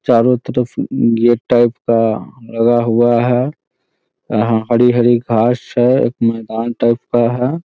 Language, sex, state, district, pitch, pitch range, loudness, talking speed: Hindi, male, Bihar, Muzaffarpur, 120 Hz, 115-125 Hz, -14 LUFS, 140 wpm